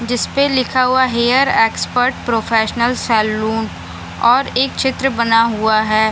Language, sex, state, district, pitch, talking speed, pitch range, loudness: Hindi, female, Bihar, Samastipur, 235 Hz, 135 wpm, 225-260 Hz, -15 LUFS